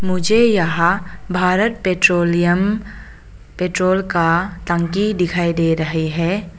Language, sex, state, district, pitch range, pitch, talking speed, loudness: Hindi, female, Arunachal Pradesh, Papum Pare, 170-190 Hz, 180 Hz, 100 wpm, -17 LUFS